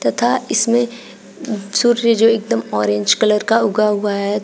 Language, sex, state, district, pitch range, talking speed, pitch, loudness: Hindi, female, Uttar Pradesh, Shamli, 200-230 Hz, 150 wpm, 215 Hz, -16 LUFS